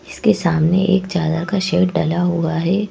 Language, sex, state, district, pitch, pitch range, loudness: Hindi, female, Madhya Pradesh, Bhopal, 175 Hz, 165-190 Hz, -17 LUFS